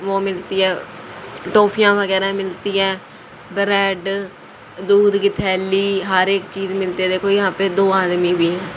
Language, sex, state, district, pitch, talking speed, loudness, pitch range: Hindi, female, Haryana, Rohtak, 195 Hz, 155 wpm, -17 LUFS, 185-200 Hz